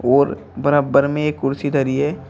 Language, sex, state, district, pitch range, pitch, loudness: Hindi, male, Uttar Pradesh, Shamli, 135-145 Hz, 140 Hz, -18 LUFS